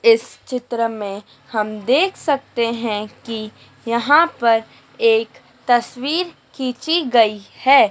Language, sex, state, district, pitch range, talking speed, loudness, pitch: Hindi, female, Madhya Pradesh, Dhar, 225-295 Hz, 115 wpm, -19 LUFS, 240 Hz